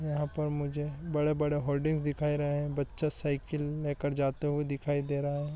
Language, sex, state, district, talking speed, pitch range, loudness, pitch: Hindi, male, Chhattisgarh, Raigarh, 185 wpm, 145-150 Hz, -32 LUFS, 145 Hz